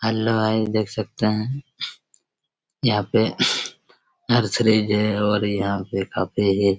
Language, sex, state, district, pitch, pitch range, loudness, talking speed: Hindi, male, Chhattisgarh, Raigarh, 110 Hz, 100-110 Hz, -22 LUFS, 95 wpm